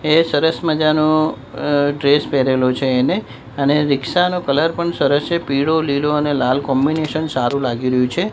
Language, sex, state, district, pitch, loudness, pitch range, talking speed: Gujarati, male, Gujarat, Gandhinagar, 145 Hz, -17 LUFS, 135-155 Hz, 175 wpm